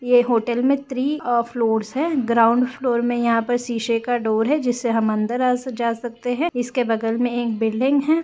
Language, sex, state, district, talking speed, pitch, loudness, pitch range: Hindi, female, Jharkhand, Sahebganj, 210 wpm, 240 Hz, -21 LUFS, 230-250 Hz